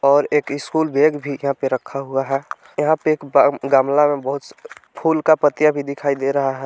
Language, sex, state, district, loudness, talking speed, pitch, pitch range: Hindi, male, Jharkhand, Palamu, -19 LUFS, 215 wpm, 140 Hz, 135-150 Hz